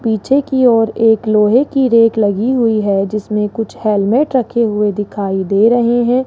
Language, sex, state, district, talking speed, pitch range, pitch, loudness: Hindi, male, Rajasthan, Jaipur, 180 wpm, 210-240 Hz, 225 Hz, -13 LUFS